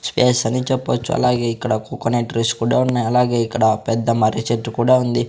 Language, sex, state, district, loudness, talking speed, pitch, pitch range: Telugu, male, Andhra Pradesh, Sri Satya Sai, -18 LUFS, 170 wpm, 120 Hz, 115-125 Hz